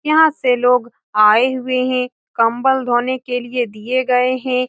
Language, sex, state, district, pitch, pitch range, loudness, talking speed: Hindi, female, Bihar, Saran, 250 Hz, 240-255 Hz, -16 LUFS, 165 wpm